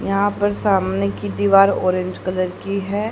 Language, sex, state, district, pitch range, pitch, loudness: Hindi, female, Haryana, Rohtak, 185-200 Hz, 195 Hz, -19 LUFS